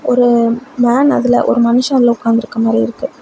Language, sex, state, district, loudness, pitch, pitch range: Tamil, female, Tamil Nadu, Kanyakumari, -13 LUFS, 240 Hz, 235-255 Hz